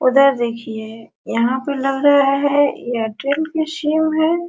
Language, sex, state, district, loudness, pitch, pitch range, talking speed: Hindi, female, Bihar, Araria, -18 LUFS, 275 Hz, 240-300 Hz, 145 wpm